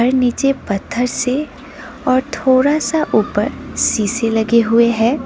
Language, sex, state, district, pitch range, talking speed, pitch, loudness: Hindi, female, Sikkim, Gangtok, 230-270 Hz, 125 wpm, 250 Hz, -16 LUFS